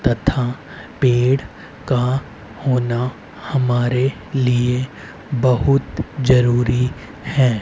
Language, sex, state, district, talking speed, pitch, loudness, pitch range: Hindi, male, Haryana, Rohtak, 70 wpm, 125 Hz, -19 LUFS, 120-135 Hz